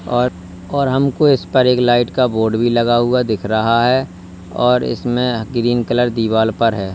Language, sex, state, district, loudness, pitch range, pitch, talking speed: Hindi, male, Uttar Pradesh, Lalitpur, -16 LUFS, 110-125 Hz, 120 Hz, 190 wpm